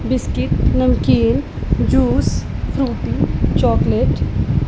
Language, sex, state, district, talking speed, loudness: Hindi, female, Punjab, Pathankot, 75 wpm, -17 LUFS